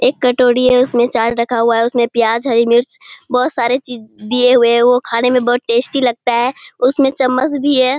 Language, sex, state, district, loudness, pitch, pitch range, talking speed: Hindi, female, Bihar, Kishanganj, -13 LUFS, 245 Hz, 235-255 Hz, 220 wpm